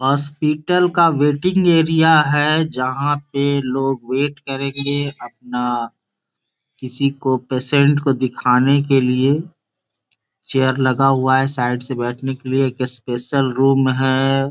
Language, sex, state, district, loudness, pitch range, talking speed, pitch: Hindi, male, Bihar, Gopalganj, -17 LUFS, 130-145 Hz, 130 wpm, 135 Hz